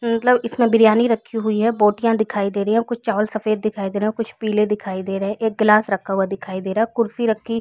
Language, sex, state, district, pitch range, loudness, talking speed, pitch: Hindi, female, Chhattisgarh, Rajnandgaon, 205-230 Hz, -19 LUFS, 285 wpm, 215 Hz